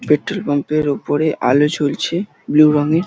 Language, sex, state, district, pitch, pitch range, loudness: Bengali, male, West Bengal, Dakshin Dinajpur, 150 Hz, 145-160 Hz, -16 LUFS